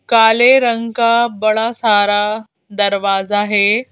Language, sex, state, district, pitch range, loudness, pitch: Hindi, female, Madhya Pradesh, Bhopal, 205-230 Hz, -14 LUFS, 215 Hz